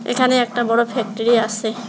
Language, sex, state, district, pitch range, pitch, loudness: Bengali, male, West Bengal, Alipurduar, 225-240 Hz, 235 Hz, -18 LUFS